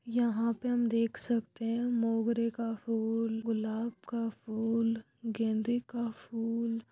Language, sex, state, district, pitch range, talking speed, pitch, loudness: Hindi, female, Andhra Pradesh, Anantapur, 225-235 Hz, 260 wpm, 230 Hz, -33 LUFS